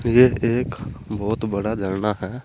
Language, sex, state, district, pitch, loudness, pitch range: Hindi, male, Uttar Pradesh, Saharanpur, 110 Hz, -22 LUFS, 105-120 Hz